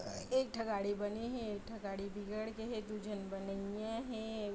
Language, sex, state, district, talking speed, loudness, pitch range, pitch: Chhattisgarhi, female, Chhattisgarh, Bilaspur, 225 wpm, -41 LUFS, 205-225 Hz, 210 Hz